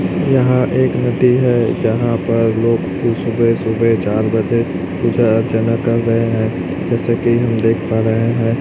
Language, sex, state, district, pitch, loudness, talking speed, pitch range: Hindi, male, Chhattisgarh, Raipur, 115 Hz, -15 LUFS, 160 wpm, 110-120 Hz